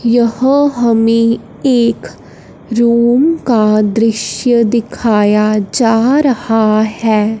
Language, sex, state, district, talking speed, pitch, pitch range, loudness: Hindi, female, Punjab, Fazilka, 80 wpm, 230 Hz, 220-240 Hz, -12 LUFS